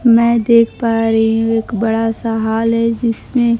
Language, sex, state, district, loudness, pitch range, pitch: Hindi, female, Bihar, Kaimur, -14 LUFS, 225-235 Hz, 225 Hz